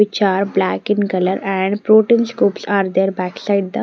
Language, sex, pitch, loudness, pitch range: English, female, 200 Hz, -16 LUFS, 190-210 Hz